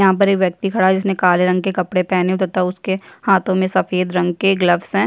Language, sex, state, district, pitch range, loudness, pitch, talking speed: Hindi, female, Chhattisgarh, Jashpur, 180-195 Hz, -17 LUFS, 185 Hz, 250 wpm